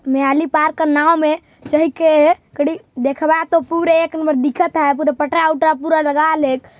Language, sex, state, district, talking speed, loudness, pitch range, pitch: Hindi, male, Chhattisgarh, Jashpur, 195 wpm, -16 LUFS, 295-325 Hz, 310 Hz